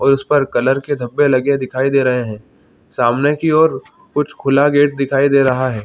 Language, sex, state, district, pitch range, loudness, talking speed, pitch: Hindi, male, Chhattisgarh, Bilaspur, 130-145 Hz, -15 LUFS, 215 wpm, 135 Hz